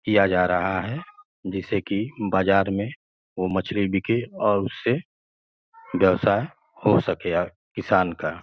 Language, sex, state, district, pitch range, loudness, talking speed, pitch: Hindi, male, Uttar Pradesh, Gorakhpur, 95-120 Hz, -23 LUFS, 135 wpm, 100 Hz